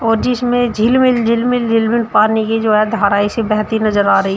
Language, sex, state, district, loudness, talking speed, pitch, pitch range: Hindi, female, Uttar Pradesh, Shamli, -14 LUFS, 205 wpm, 225 Hz, 215-235 Hz